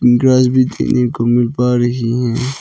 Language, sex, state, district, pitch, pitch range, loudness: Hindi, male, Arunachal Pradesh, Lower Dibang Valley, 125 Hz, 120-130 Hz, -14 LUFS